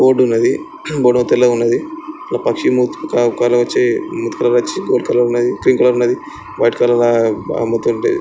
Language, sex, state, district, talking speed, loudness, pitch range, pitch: Telugu, male, Andhra Pradesh, Srikakulam, 175 wpm, -15 LUFS, 120-195 Hz, 120 Hz